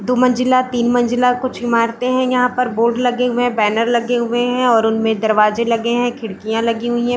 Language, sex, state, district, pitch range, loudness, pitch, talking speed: Hindi, female, Chhattisgarh, Bilaspur, 230-250 Hz, -16 LUFS, 240 Hz, 225 wpm